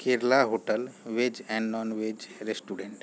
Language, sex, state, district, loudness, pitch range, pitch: Hindi, male, Chhattisgarh, Raigarh, -29 LUFS, 110-125 Hz, 115 Hz